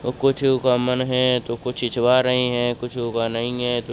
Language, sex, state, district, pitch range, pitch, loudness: Hindi, male, Uttarakhand, Uttarkashi, 120-125 Hz, 125 Hz, -21 LUFS